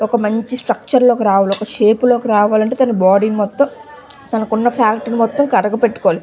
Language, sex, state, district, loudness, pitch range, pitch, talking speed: Telugu, female, Andhra Pradesh, Visakhapatnam, -14 LUFS, 215-245 Hz, 225 Hz, 185 wpm